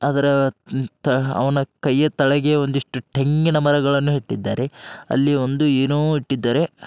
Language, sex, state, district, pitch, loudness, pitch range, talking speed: Kannada, male, Karnataka, Dharwad, 140 Hz, -20 LUFS, 130-145 Hz, 150 wpm